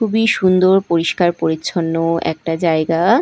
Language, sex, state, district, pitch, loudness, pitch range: Bengali, female, Odisha, Malkangiri, 170 Hz, -16 LUFS, 165-185 Hz